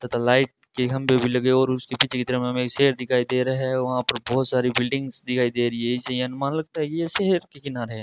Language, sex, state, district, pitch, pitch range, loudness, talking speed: Hindi, male, Rajasthan, Bikaner, 125 Hz, 125-135 Hz, -23 LUFS, 270 wpm